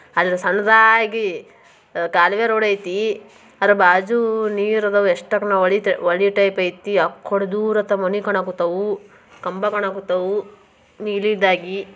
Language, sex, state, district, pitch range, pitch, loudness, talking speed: Kannada, female, Karnataka, Bijapur, 185-210 Hz, 200 Hz, -18 LUFS, 55 wpm